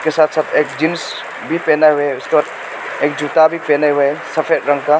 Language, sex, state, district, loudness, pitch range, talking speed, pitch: Hindi, male, Arunachal Pradesh, Papum Pare, -16 LUFS, 145-160 Hz, 215 wpm, 155 Hz